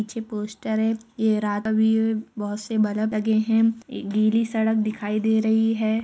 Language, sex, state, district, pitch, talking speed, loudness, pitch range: Hindi, female, Uttar Pradesh, Jalaun, 220 Hz, 170 wpm, -23 LUFS, 215-225 Hz